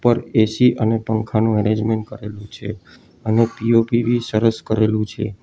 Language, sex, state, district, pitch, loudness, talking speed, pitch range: Gujarati, male, Gujarat, Valsad, 110 Hz, -18 LUFS, 145 wpm, 110-115 Hz